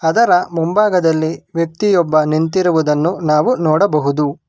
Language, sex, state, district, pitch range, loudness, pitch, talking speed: Kannada, male, Karnataka, Bangalore, 155-180 Hz, -15 LUFS, 165 Hz, 80 wpm